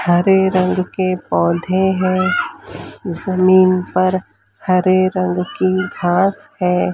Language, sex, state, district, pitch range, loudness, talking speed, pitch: Hindi, female, Maharashtra, Mumbai Suburban, 180-185 Hz, -16 LUFS, 105 wpm, 185 Hz